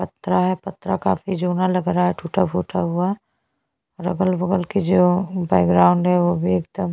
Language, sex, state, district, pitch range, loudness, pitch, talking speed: Hindi, female, Chhattisgarh, Bastar, 170-185 Hz, -20 LUFS, 180 Hz, 155 wpm